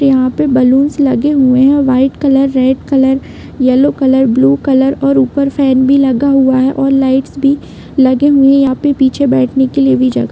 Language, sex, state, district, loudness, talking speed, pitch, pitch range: Hindi, female, Bihar, Bhagalpur, -10 LUFS, 210 wpm, 270 Hz, 260-275 Hz